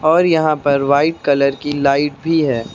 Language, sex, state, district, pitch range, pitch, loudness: Hindi, male, Uttar Pradesh, Lucknow, 140-160 Hz, 145 Hz, -15 LUFS